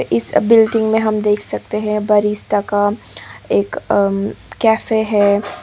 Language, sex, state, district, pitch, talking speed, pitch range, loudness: Hindi, female, Nagaland, Dimapur, 210 Hz, 140 wpm, 205-220 Hz, -16 LUFS